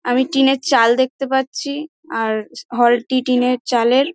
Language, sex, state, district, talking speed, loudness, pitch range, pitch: Bengali, female, West Bengal, Dakshin Dinajpur, 160 wpm, -17 LUFS, 240-270 Hz, 255 Hz